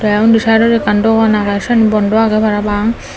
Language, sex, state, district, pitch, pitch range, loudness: Chakma, female, Tripura, Dhalai, 215 Hz, 210-225 Hz, -12 LUFS